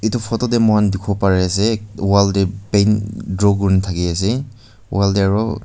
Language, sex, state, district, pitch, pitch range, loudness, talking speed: Nagamese, male, Nagaland, Kohima, 100 Hz, 100-110 Hz, -17 LUFS, 180 wpm